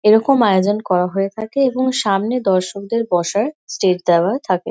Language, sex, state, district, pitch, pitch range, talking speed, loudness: Bengali, female, West Bengal, Kolkata, 200 Hz, 185-230 Hz, 155 wpm, -17 LUFS